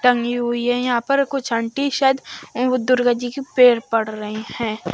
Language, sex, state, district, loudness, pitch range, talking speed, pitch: Hindi, female, Haryana, Charkhi Dadri, -19 LUFS, 230-255 Hz, 195 wpm, 245 Hz